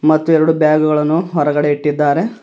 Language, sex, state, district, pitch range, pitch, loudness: Kannada, male, Karnataka, Bidar, 150-160 Hz, 155 Hz, -14 LUFS